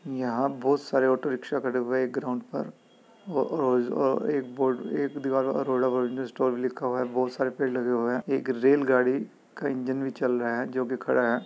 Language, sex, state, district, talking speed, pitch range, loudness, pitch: Hindi, male, Uttar Pradesh, Etah, 225 wpm, 125-135 Hz, -27 LUFS, 130 Hz